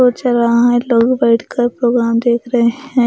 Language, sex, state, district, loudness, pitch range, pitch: Hindi, female, Punjab, Pathankot, -14 LUFS, 235-250 Hz, 240 Hz